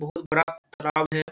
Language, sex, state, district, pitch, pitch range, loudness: Hindi, male, Bihar, Jamui, 155 Hz, 155-165 Hz, -26 LUFS